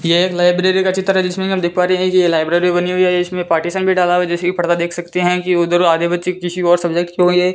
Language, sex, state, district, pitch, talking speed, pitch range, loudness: Hindi, female, Rajasthan, Bikaner, 180 Hz, 310 wpm, 175-180 Hz, -15 LUFS